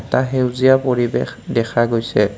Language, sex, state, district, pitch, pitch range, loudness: Assamese, male, Assam, Kamrup Metropolitan, 120 Hz, 115-130 Hz, -17 LUFS